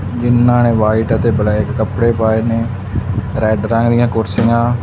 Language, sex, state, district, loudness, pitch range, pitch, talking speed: Punjabi, male, Punjab, Fazilka, -14 LUFS, 110-120 Hz, 115 Hz, 160 wpm